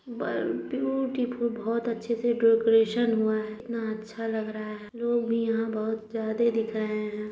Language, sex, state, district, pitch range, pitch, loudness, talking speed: Hindi, female, Uttar Pradesh, Hamirpur, 220-235 Hz, 225 Hz, -28 LUFS, 170 wpm